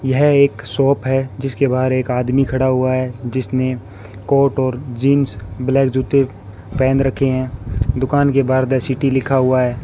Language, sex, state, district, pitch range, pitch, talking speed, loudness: Hindi, male, Rajasthan, Bikaner, 125-135 Hz, 130 Hz, 170 wpm, -17 LUFS